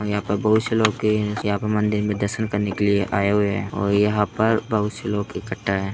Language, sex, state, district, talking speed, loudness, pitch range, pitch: Hindi, male, Uttar Pradesh, Hamirpur, 260 wpm, -22 LUFS, 100-105 Hz, 105 Hz